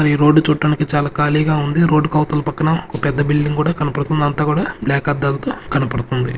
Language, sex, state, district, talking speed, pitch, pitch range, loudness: Telugu, male, Andhra Pradesh, Sri Satya Sai, 180 wpm, 150 Hz, 145-150 Hz, -17 LUFS